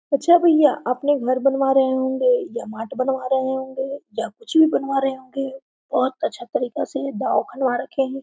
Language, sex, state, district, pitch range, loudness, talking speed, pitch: Hindi, female, Jharkhand, Sahebganj, 260-280 Hz, -21 LUFS, 190 wpm, 270 Hz